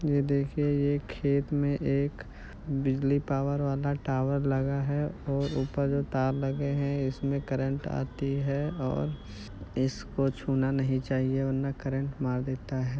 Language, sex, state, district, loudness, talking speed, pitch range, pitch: Hindi, male, Uttar Pradesh, Jyotiba Phule Nagar, -30 LUFS, 150 wpm, 130-140 Hz, 135 Hz